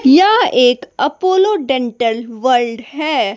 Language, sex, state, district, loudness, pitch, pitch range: Hindi, female, Bihar, West Champaran, -14 LUFS, 265 Hz, 240-310 Hz